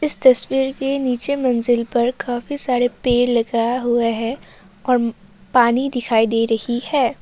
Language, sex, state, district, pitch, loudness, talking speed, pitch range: Hindi, female, Assam, Kamrup Metropolitan, 245 Hz, -19 LUFS, 150 wpm, 230-260 Hz